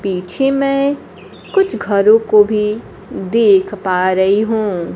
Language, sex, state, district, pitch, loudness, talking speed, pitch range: Hindi, female, Bihar, Kaimur, 210 Hz, -14 LUFS, 120 wpm, 190-230 Hz